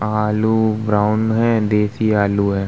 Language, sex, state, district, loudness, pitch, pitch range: Hindi, male, Bihar, Vaishali, -17 LUFS, 105 Hz, 105-110 Hz